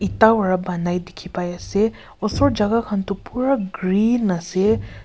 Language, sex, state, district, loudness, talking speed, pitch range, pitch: Nagamese, female, Nagaland, Kohima, -20 LUFS, 155 wpm, 180-220 Hz, 200 Hz